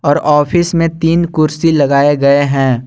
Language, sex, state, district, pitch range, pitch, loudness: Hindi, male, Jharkhand, Garhwa, 140-165 Hz, 150 Hz, -12 LUFS